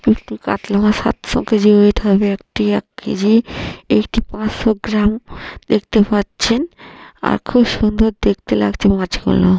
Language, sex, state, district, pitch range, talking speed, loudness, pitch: Bengali, female, West Bengal, North 24 Parganas, 195-220 Hz, 130 wpm, -16 LUFS, 210 Hz